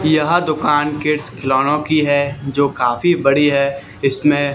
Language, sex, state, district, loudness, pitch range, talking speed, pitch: Hindi, male, Haryana, Charkhi Dadri, -16 LUFS, 140-150 Hz, 145 wpm, 145 Hz